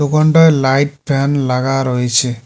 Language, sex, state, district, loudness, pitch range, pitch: Bengali, male, West Bengal, Cooch Behar, -13 LUFS, 125-145 Hz, 135 Hz